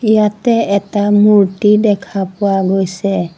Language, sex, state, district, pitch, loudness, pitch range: Assamese, female, Assam, Sonitpur, 200 Hz, -13 LUFS, 195-210 Hz